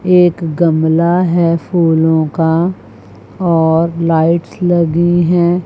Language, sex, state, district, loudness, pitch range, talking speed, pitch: Hindi, female, Chandigarh, Chandigarh, -12 LUFS, 160-175 Hz, 95 wpm, 170 Hz